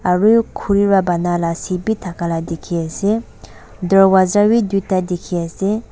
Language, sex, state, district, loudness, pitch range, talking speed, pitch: Nagamese, female, Nagaland, Dimapur, -17 LUFS, 175-205 Hz, 130 wpm, 190 Hz